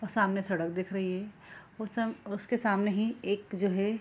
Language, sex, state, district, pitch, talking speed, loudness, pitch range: Hindi, female, Bihar, Kishanganj, 200 Hz, 225 wpm, -32 LUFS, 195-215 Hz